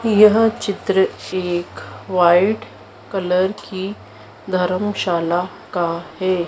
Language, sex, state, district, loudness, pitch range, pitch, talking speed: Hindi, female, Madhya Pradesh, Dhar, -19 LUFS, 175-200 Hz, 185 Hz, 85 wpm